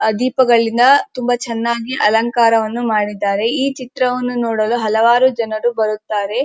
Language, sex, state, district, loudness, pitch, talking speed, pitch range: Kannada, female, Karnataka, Dharwad, -16 LUFS, 235 Hz, 110 wpm, 220-250 Hz